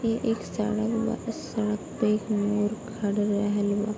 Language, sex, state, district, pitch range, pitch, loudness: Bhojpuri, female, Bihar, Gopalganj, 205-220 Hz, 215 Hz, -27 LUFS